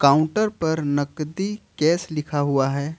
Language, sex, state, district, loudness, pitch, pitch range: Hindi, male, Jharkhand, Ranchi, -23 LUFS, 155 Hz, 145-165 Hz